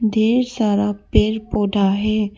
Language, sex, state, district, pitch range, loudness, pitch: Hindi, female, Arunachal Pradesh, Papum Pare, 205-220 Hz, -18 LUFS, 215 Hz